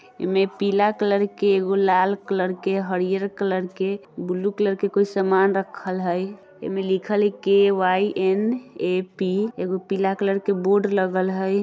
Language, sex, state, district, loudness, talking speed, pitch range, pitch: Bajjika, female, Bihar, Vaishali, -22 LUFS, 180 wpm, 190-200 Hz, 195 Hz